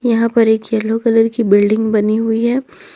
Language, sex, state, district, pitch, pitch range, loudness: Hindi, female, Jharkhand, Ranchi, 225 Hz, 220-230 Hz, -14 LUFS